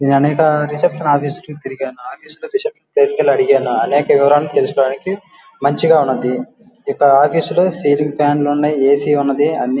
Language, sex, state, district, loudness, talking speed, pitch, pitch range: Telugu, male, Andhra Pradesh, Guntur, -15 LUFS, 155 wpm, 150 Hz, 140-175 Hz